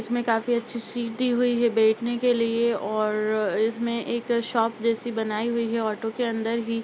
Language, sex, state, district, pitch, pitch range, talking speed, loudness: Hindi, female, Bihar, Jahanabad, 230 Hz, 225-235 Hz, 195 wpm, -25 LUFS